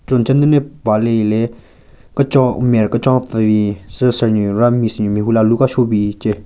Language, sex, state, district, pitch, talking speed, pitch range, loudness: Rengma, male, Nagaland, Kohima, 115 Hz, 225 wpm, 105-125 Hz, -15 LUFS